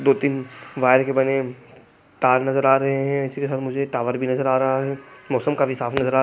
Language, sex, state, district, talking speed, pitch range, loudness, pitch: Hindi, male, Chhattisgarh, Kabirdham, 260 wpm, 130-140 Hz, -21 LUFS, 135 Hz